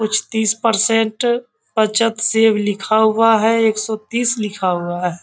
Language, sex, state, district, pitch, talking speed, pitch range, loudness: Hindi, male, Bihar, Samastipur, 220 Hz, 160 wpm, 215-225 Hz, -16 LUFS